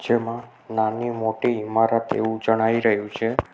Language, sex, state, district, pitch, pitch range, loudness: Gujarati, male, Gujarat, Navsari, 115 Hz, 110-115 Hz, -23 LUFS